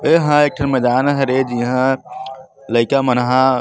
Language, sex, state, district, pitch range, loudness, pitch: Chhattisgarhi, male, Chhattisgarh, Bastar, 125-135 Hz, -16 LUFS, 130 Hz